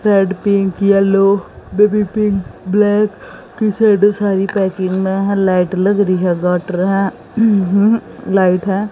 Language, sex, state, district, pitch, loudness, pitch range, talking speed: Hindi, female, Haryana, Jhajjar, 195 Hz, -14 LUFS, 190-205 Hz, 115 wpm